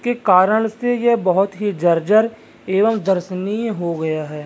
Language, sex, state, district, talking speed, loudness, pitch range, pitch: Hindi, male, Bihar, Vaishali, 175 wpm, -18 LUFS, 180-225 Hz, 200 Hz